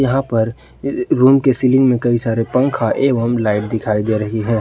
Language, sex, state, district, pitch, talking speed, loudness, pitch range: Hindi, male, Jharkhand, Ranchi, 120 Hz, 220 wpm, -16 LUFS, 110-130 Hz